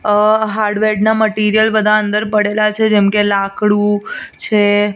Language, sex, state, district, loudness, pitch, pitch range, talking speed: Gujarati, female, Gujarat, Gandhinagar, -13 LUFS, 210 Hz, 205-215 Hz, 135 wpm